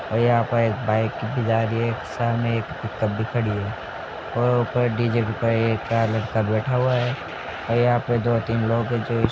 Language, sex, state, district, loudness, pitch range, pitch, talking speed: Hindi, male, Uttar Pradesh, Ghazipur, -23 LUFS, 110-120 Hz, 115 Hz, 220 wpm